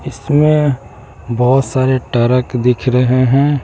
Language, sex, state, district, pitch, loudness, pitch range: Hindi, male, Bihar, West Champaran, 130 Hz, -13 LUFS, 125-135 Hz